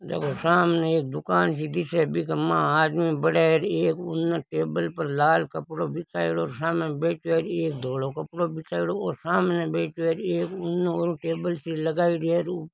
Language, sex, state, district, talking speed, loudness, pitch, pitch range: Marwari, male, Rajasthan, Nagaur, 170 wpm, -25 LUFS, 165 Hz, 160-170 Hz